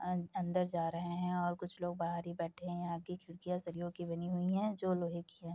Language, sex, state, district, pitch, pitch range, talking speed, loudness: Hindi, female, Bihar, Bhagalpur, 175 Hz, 170-180 Hz, 260 wpm, -39 LUFS